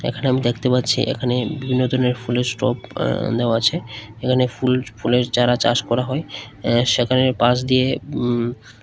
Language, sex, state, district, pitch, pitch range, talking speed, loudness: Bengali, male, Tripura, West Tripura, 125 Hz, 120-130 Hz, 165 wpm, -19 LUFS